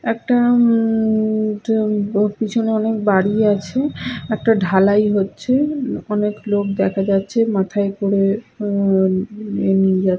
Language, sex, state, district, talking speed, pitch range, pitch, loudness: Bengali, female, West Bengal, Paschim Medinipur, 125 wpm, 195-225 Hz, 210 Hz, -18 LUFS